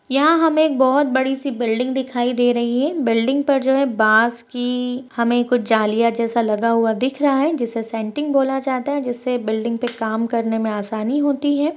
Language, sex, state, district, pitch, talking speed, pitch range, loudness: Hindi, female, Uttar Pradesh, Jalaun, 245 Hz, 205 wpm, 230-275 Hz, -19 LUFS